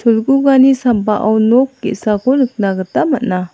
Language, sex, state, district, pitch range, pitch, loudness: Garo, female, Meghalaya, South Garo Hills, 210-265 Hz, 235 Hz, -13 LUFS